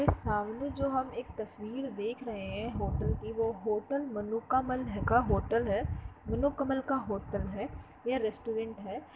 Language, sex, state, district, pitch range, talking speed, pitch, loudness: Hindi, female, Uttar Pradesh, Jalaun, 215-260 Hz, 165 wpm, 230 Hz, -34 LUFS